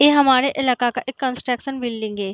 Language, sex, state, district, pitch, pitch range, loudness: Hindi, female, Bihar, Sitamarhi, 255 Hz, 240-270 Hz, -20 LUFS